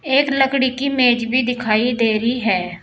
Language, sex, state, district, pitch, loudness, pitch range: Hindi, female, Uttar Pradesh, Saharanpur, 245 Hz, -17 LUFS, 230-265 Hz